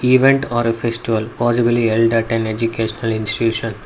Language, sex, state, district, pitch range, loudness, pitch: English, male, Karnataka, Bangalore, 115-120 Hz, -17 LUFS, 115 Hz